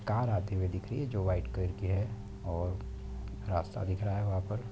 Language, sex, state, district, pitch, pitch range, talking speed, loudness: Hindi, male, Bihar, Darbhanga, 100 Hz, 95-105 Hz, 230 wpm, -35 LUFS